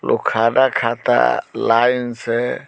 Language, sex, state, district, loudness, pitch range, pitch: Bhojpuri, male, Bihar, Muzaffarpur, -17 LUFS, 115-125 Hz, 120 Hz